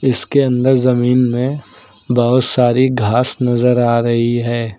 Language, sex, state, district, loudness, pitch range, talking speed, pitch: Hindi, male, Uttar Pradesh, Lucknow, -14 LUFS, 120-130 Hz, 140 wpm, 125 Hz